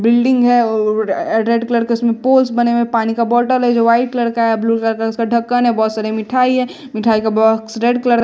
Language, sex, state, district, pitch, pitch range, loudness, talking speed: Hindi, female, Bihar, West Champaran, 235 Hz, 225-245 Hz, -15 LUFS, 260 wpm